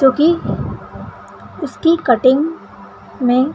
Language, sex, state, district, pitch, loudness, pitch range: Kumaoni, male, Uttarakhand, Tehri Garhwal, 270 Hz, -16 LUFS, 255-325 Hz